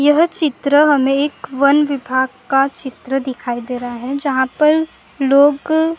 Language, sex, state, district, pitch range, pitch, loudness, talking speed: Hindi, female, Maharashtra, Gondia, 260-295 Hz, 275 Hz, -16 LUFS, 150 wpm